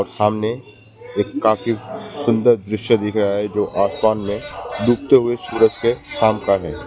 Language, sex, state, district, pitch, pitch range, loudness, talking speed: Hindi, male, West Bengal, Alipurduar, 110 Hz, 105-120 Hz, -19 LUFS, 165 wpm